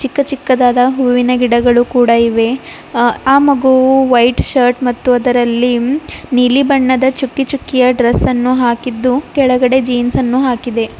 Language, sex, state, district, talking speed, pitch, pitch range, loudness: Kannada, female, Karnataka, Bidar, 125 wpm, 250 Hz, 245-265 Hz, -12 LUFS